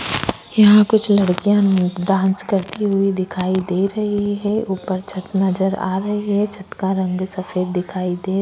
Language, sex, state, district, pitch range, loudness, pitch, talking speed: Hindi, female, Chhattisgarh, Korba, 185-205 Hz, -18 LUFS, 195 Hz, 155 wpm